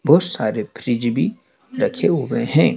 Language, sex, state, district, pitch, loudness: Hindi, male, Madhya Pradesh, Dhar, 180 Hz, -20 LUFS